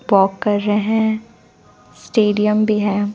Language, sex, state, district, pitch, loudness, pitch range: Hindi, female, Punjab, Fazilka, 210 Hz, -17 LUFS, 205-220 Hz